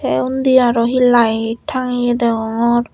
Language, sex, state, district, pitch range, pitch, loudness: Chakma, female, Tripura, Unakoti, 230-250 Hz, 240 Hz, -15 LUFS